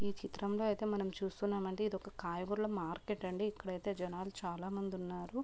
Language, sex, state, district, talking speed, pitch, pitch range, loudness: Telugu, female, Andhra Pradesh, Guntur, 175 wpm, 195 Hz, 185-205 Hz, -40 LUFS